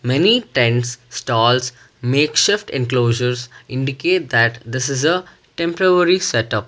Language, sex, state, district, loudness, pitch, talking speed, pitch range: English, male, Karnataka, Bangalore, -17 LUFS, 130 Hz, 110 wpm, 120-170 Hz